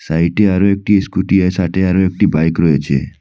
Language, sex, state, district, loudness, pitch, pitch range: Bengali, male, Assam, Hailakandi, -14 LUFS, 95 Hz, 80-100 Hz